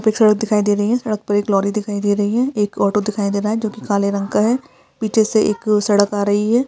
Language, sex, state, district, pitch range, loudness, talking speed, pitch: Hindi, female, Bihar, Darbhanga, 205-220 Hz, -18 LUFS, 315 wpm, 210 Hz